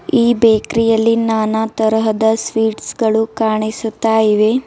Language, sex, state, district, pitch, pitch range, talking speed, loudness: Kannada, female, Karnataka, Bidar, 220 Hz, 220-230 Hz, 115 wpm, -15 LUFS